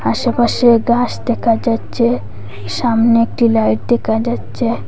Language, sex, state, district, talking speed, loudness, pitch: Bengali, female, Assam, Hailakandi, 110 wpm, -15 LUFS, 230 Hz